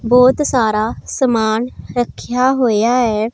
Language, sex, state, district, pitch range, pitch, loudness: Hindi, female, Punjab, Pathankot, 220-255 Hz, 245 Hz, -15 LUFS